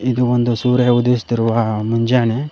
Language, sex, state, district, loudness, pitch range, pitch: Kannada, male, Karnataka, Koppal, -16 LUFS, 115-125 Hz, 120 Hz